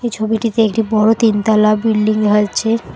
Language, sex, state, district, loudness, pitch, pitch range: Bengali, female, West Bengal, Alipurduar, -14 LUFS, 220 Hz, 215-225 Hz